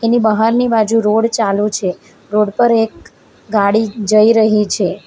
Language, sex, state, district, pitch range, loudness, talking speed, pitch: Gujarati, female, Gujarat, Valsad, 210-225 Hz, -14 LUFS, 155 wpm, 220 Hz